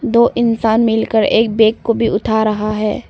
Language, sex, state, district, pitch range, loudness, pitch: Hindi, female, Arunachal Pradesh, Papum Pare, 220-230 Hz, -14 LUFS, 225 Hz